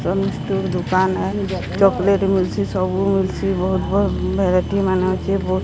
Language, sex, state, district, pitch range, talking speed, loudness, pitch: Odia, female, Odisha, Sambalpur, 185-195 Hz, 140 wpm, -19 LUFS, 190 Hz